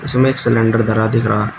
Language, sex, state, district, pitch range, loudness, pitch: Hindi, male, Uttar Pradesh, Shamli, 110-125 Hz, -14 LUFS, 115 Hz